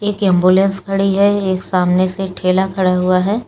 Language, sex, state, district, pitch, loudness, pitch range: Hindi, female, Uttar Pradesh, Lucknow, 190 Hz, -15 LUFS, 185-195 Hz